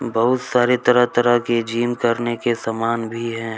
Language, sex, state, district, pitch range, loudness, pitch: Hindi, male, Jharkhand, Deoghar, 115-120 Hz, -19 LUFS, 120 Hz